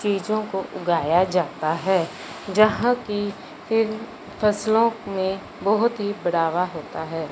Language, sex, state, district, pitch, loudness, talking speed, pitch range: Hindi, male, Punjab, Fazilka, 200 Hz, -23 LUFS, 115 wpm, 175-215 Hz